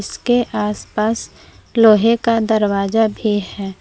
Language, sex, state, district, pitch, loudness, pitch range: Hindi, female, Jharkhand, Palamu, 220 Hz, -17 LUFS, 210-230 Hz